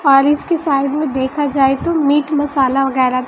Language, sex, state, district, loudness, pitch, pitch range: Hindi, female, Bihar, West Champaran, -15 LUFS, 280 Hz, 270-295 Hz